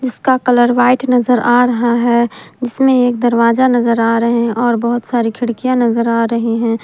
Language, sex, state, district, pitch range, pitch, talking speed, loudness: Hindi, female, Jharkhand, Palamu, 235-245 Hz, 240 Hz, 195 wpm, -13 LUFS